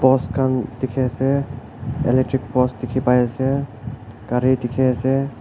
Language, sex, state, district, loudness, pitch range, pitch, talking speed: Nagamese, male, Nagaland, Kohima, -20 LUFS, 125-130 Hz, 130 Hz, 135 wpm